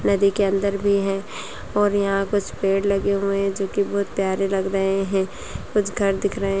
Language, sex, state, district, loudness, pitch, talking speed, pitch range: Kumaoni, female, Uttarakhand, Uttarkashi, -22 LUFS, 195 Hz, 210 wpm, 195-200 Hz